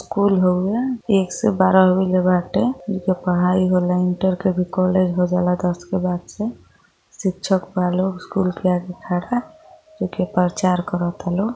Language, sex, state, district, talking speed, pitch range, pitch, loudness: Hindi, female, Uttar Pradesh, Gorakhpur, 170 wpm, 180-190 Hz, 185 Hz, -20 LUFS